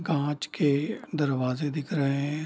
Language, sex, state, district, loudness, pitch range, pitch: Hindi, male, Bihar, Darbhanga, -28 LUFS, 140-150 Hz, 145 Hz